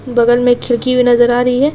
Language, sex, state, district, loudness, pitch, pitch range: Hindi, female, Bihar, East Champaran, -12 LUFS, 245 Hz, 240-250 Hz